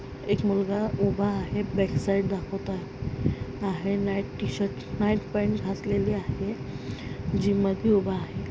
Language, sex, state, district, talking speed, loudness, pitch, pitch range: Marathi, female, Maharashtra, Aurangabad, 125 wpm, -28 LUFS, 195 Hz, 190-205 Hz